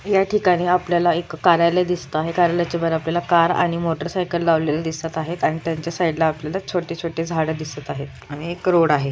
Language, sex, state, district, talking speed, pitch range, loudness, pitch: Marathi, female, Maharashtra, Chandrapur, 195 wpm, 160-175 Hz, -20 LUFS, 170 Hz